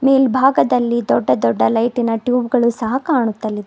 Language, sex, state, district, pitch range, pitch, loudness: Kannada, female, Karnataka, Bidar, 220-255 Hz, 235 Hz, -16 LUFS